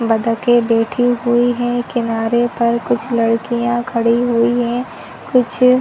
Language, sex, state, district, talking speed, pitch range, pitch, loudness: Hindi, female, Chhattisgarh, Rajnandgaon, 125 wpm, 230-245 Hz, 240 Hz, -16 LUFS